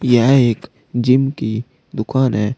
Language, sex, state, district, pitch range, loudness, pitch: Hindi, male, Uttar Pradesh, Saharanpur, 110-130 Hz, -17 LUFS, 125 Hz